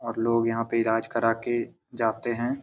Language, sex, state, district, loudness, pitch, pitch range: Hindi, male, Jharkhand, Jamtara, -26 LUFS, 115 Hz, 115-120 Hz